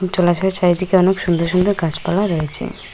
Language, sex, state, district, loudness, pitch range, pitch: Bengali, female, Assam, Hailakandi, -17 LUFS, 170-190 Hz, 180 Hz